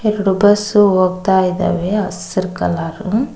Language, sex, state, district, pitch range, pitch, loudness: Kannada, female, Karnataka, Koppal, 185-210 Hz, 190 Hz, -15 LUFS